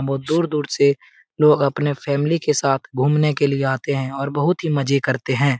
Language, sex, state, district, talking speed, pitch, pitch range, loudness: Hindi, male, Bihar, Saran, 205 wpm, 140 Hz, 135-150 Hz, -19 LUFS